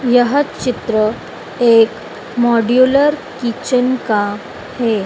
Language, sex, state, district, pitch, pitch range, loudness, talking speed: Hindi, female, Madhya Pradesh, Dhar, 240 Hz, 225-255 Hz, -15 LUFS, 85 wpm